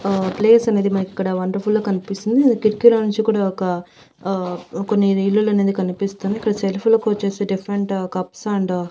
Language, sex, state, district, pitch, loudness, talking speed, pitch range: Telugu, female, Andhra Pradesh, Annamaya, 200 Hz, -19 LUFS, 175 wpm, 190-215 Hz